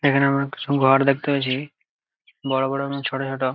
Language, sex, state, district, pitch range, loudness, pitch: Bengali, male, West Bengal, Jalpaiguri, 135-140 Hz, -21 LUFS, 140 Hz